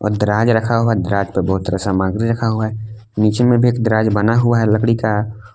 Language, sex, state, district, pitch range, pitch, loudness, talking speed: Hindi, male, Jharkhand, Palamu, 105-115 Hz, 110 Hz, -16 LUFS, 235 wpm